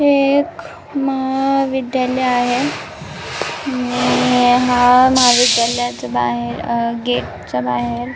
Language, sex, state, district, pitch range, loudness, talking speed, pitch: Marathi, female, Maharashtra, Nagpur, 235-265 Hz, -16 LUFS, 95 wpm, 245 Hz